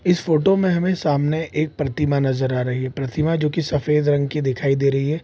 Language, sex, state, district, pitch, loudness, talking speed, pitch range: Hindi, male, Bihar, Saharsa, 150 Hz, -20 LUFS, 250 wpm, 135-160 Hz